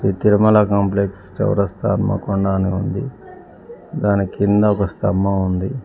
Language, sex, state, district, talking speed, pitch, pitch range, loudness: Telugu, male, Telangana, Mahabubabad, 115 wpm, 100 Hz, 95-105 Hz, -18 LUFS